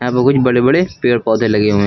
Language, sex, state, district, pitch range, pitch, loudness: Hindi, male, Uttar Pradesh, Lucknow, 110-125 Hz, 120 Hz, -13 LUFS